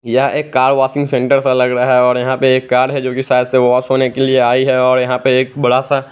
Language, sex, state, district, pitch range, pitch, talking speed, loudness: Hindi, male, Chandigarh, Chandigarh, 125-135 Hz, 130 Hz, 305 wpm, -13 LUFS